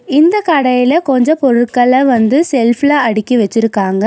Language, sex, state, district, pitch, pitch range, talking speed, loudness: Tamil, female, Tamil Nadu, Nilgiris, 255 Hz, 230-290 Hz, 120 wpm, -11 LUFS